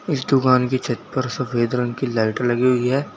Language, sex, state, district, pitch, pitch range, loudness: Hindi, male, Uttar Pradesh, Saharanpur, 125 Hz, 120-130 Hz, -20 LUFS